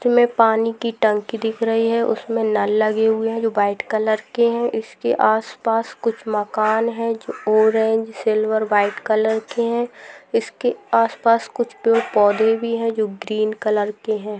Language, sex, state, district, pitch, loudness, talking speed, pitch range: Hindi, female, Bihar, Gopalganj, 225 Hz, -19 LUFS, 165 wpm, 215-230 Hz